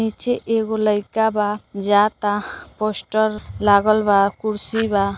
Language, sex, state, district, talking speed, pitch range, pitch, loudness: Bhojpuri, female, Uttar Pradesh, Deoria, 115 wpm, 205-220 Hz, 215 Hz, -19 LUFS